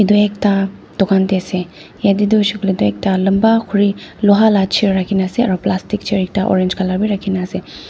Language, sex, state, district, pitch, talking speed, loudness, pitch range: Nagamese, female, Nagaland, Dimapur, 195 Hz, 215 wpm, -15 LUFS, 190-205 Hz